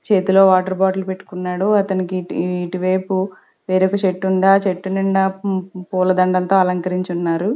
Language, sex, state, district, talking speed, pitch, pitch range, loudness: Telugu, female, Andhra Pradesh, Sri Satya Sai, 125 wpm, 190 Hz, 185-190 Hz, -18 LUFS